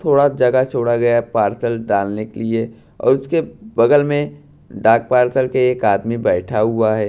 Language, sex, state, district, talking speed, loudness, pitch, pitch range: Hindi, male, Bihar, Katihar, 170 wpm, -17 LUFS, 120 Hz, 115-140 Hz